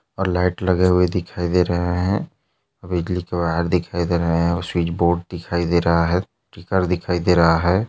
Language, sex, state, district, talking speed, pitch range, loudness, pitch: Hindi, male, Maharashtra, Aurangabad, 205 wpm, 85-90 Hz, -20 LUFS, 90 Hz